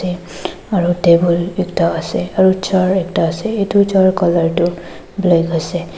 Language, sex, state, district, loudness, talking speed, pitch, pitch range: Nagamese, female, Nagaland, Dimapur, -15 LUFS, 140 wpm, 180 Hz, 175-190 Hz